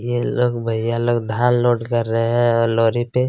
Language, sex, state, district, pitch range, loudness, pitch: Hindi, male, Chhattisgarh, Kabirdham, 115-120 Hz, -18 LUFS, 120 Hz